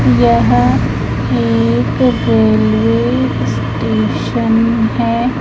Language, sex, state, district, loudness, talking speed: Hindi, female, Madhya Pradesh, Katni, -13 LUFS, 55 wpm